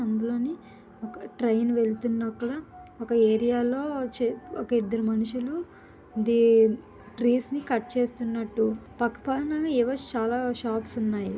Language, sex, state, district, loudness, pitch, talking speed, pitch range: Telugu, female, Andhra Pradesh, Visakhapatnam, -27 LUFS, 235 Hz, 95 wpm, 225-250 Hz